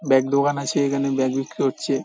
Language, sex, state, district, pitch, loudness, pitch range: Bengali, male, West Bengal, Paschim Medinipur, 140 Hz, -22 LUFS, 135-140 Hz